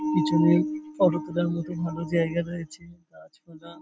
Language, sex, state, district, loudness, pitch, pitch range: Bengali, male, West Bengal, Paschim Medinipur, -25 LUFS, 165 Hz, 155-170 Hz